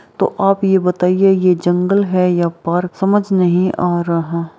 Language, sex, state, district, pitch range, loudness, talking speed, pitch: Hindi, female, Bihar, Araria, 175-190 Hz, -15 LUFS, 170 wpm, 180 Hz